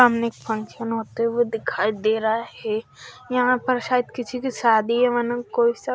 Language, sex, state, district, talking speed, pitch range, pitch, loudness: Hindi, female, Haryana, Charkhi Dadri, 200 wpm, 220-245 Hz, 235 Hz, -23 LUFS